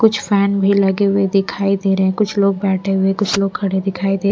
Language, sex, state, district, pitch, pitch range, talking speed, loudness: Hindi, female, Bihar, Patna, 195 Hz, 195-200 Hz, 250 wpm, -16 LUFS